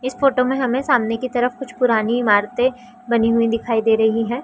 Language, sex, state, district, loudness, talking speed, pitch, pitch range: Hindi, female, Chhattisgarh, Raigarh, -18 LUFS, 215 wpm, 245 Hz, 230-250 Hz